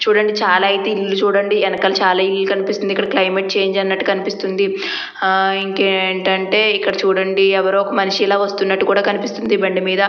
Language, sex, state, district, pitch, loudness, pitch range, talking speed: Telugu, female, Andhra Pradesh, Chittoor, 195 Hz, -16 LUFS, 190-200 Hz, 165 wpm